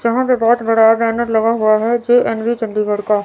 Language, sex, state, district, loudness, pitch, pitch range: Hindi, female, Chandigarh, Chandigarh, -15 LUFS, 225 Hz, 220-235 Hz